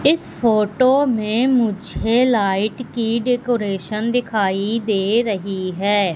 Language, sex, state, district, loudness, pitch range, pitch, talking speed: Hindi, female, Madhya Pradesh, Katni, -19 LUFS, 200-245 Hz, 225 Hz, 105 wpm